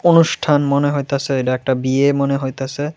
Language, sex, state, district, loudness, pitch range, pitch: Bengali, female, Tripura, West Tripura, -17 LUFS, 135-145 Hz, 140 Hz